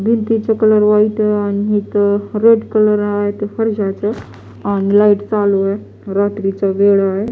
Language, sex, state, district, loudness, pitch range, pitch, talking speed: Marathi, female, Maharashtra, Washim, -15 LUFS, 200-215 Hz, 205 Hz, 140 wpm